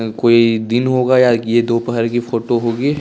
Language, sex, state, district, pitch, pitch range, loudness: Hindi, male, Bihar, West Champaran, 120 Hz, 115-125 Hz, -15 LUFS